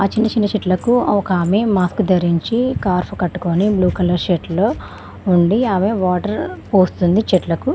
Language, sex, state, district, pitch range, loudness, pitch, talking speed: Telugu, female, Telangana, Mahabubabad, 180-210 Hz, -17 LUFS, 185 Hz, 125 wpm